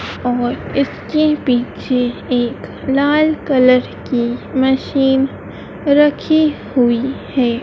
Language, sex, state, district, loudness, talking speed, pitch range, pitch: Hindi, female, Madhya Pradesh, Dhar, -16 LUFS, 85 wpm, 245-285 Hz, 265 Hz